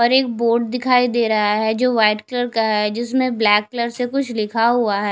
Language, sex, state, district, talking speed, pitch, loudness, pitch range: Hindi, female, Punjab, Kapurthala, 235 wpm, 235 Hz, -18 LUFS, 215-245 Hz